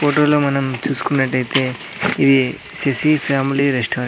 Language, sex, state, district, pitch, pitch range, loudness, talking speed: Telugu, male, Andhra Pradesh, Sri Satya Sai, 135 Hz, 130-145 Hz, -17 LUFS, 130 wpm